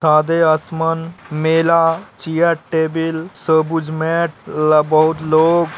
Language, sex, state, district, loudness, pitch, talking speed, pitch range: Hindi, male, Uttar Pradesh, Hamirpur, -16 LUFS, 160 Hz, 115 wpm, 155-165 Hz